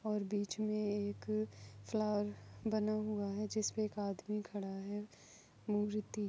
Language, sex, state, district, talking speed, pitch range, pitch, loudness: Hindi, female, Goa, North and South Goa, 150 wpm, 200-215 Hz, 210 Hz, -39 LUFS